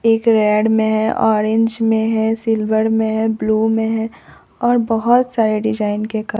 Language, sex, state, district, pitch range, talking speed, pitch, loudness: Hindi, male, Bihar, Katihar, 220-225 Hz, 180 wpm, 220 Hz, -16 LUFS